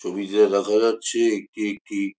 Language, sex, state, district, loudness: Bengali, male, West Bengal, Jhargram, -22 LUFS